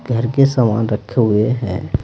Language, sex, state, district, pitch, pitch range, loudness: Hindi, male, Bihar, Patna, 115 Hz, 105-125 Hz, -16 LUFS